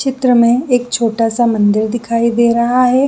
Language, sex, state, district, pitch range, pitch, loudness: Hindi, female, Jharkhand, Jamtara, 230-250 Hz, 235 Hz, -13 LUFS